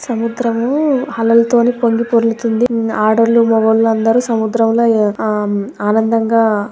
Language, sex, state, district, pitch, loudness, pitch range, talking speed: Telugu, female, Andhra Pradesh, Guntur, 230 Hz, -14 LUFS, 220-235 Hz, 80 wpm